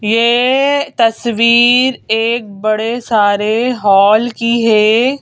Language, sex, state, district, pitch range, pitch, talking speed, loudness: Hindi, female, Madhya Pradesh, Bhopal, 215-245 Hz, 230 Hz, 90 wpm, -12 LUFS